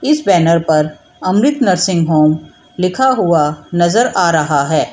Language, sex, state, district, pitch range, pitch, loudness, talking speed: Hindi, female, Bihar, Samastipur, 155-195 Hz, 170 Hz, -13 LUFS, 145 wpm